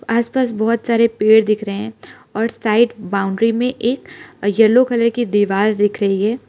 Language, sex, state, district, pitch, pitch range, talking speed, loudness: Hindi, female, Arunachal Pradesh, Lower Dibang Valley, 225 Hz, 210-235 Hz, 175 wpm, -16 LUFS